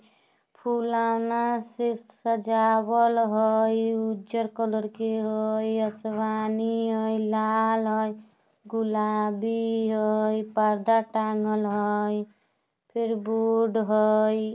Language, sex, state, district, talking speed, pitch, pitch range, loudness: Bajjika, female, Bihar, Vaishali, 80 wpm, 220 Hz, 215-225 Hz, -26 LUFS